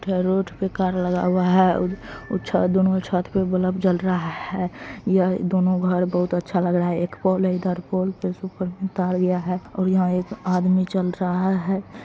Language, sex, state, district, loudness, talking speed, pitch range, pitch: Maithili, female, Bihar, Madhepura, -22 LUFS, 205 wpm, 180-190 Hz, 185 Hz